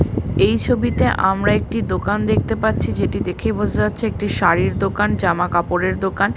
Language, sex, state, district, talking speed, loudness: Bengali, female, West Bengal, Paschim Medinipur, 160 wpm, -19 LUFS